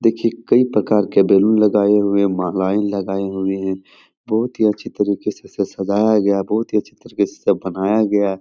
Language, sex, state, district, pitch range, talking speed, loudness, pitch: Hindi, male, Bihar, Jahanabad, 95-110 Hz, 190 wpm, -18 LUFS, 100 Hz